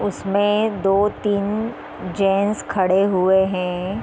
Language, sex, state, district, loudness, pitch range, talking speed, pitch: Hindi, female, Uttar Pradesh, Varanasi, -19 LUFS, 190-205 Hz, 105 wpm, 200 Hz